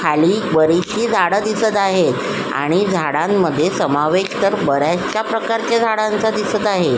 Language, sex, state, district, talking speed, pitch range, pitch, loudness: Marathi, female, Maharashtra, Solapur, 120 wpm, 180-220 Hz, 210 Hz, -17 LUFS